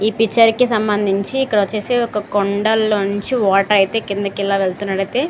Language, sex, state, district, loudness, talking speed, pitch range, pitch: Telugu, female, Andhra Pradesh, Srikakulam, -17 LUFS, 145 wpm, 200-225 Hz, 210 Hz